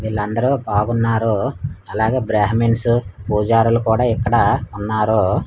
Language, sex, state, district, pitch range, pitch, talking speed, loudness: Telugu, male, Andhra Pradesh, Manyam, 105-115 Hz, 110 Hz, 90 wpm, -18 LUFS